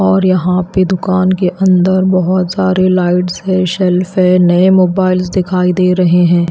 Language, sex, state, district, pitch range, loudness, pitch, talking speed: Hindi, female, Haryana, Rohtak, 180-185 Hz, -11 LUFS, 185 Hz, 165 wpm